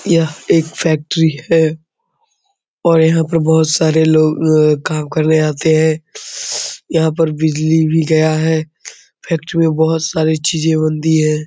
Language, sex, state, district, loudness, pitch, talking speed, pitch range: Hindi, male, Bihar, Saran, -14 LUFS, 160 Hz, 140 wpm, 155-160 Hz